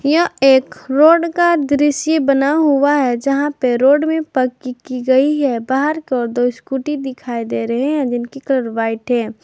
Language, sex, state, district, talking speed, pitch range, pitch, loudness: Hindi, female, Jharkhand, Ranchi, 180 wpm, 245-295 Hz, 270 Hz, -16 LUFS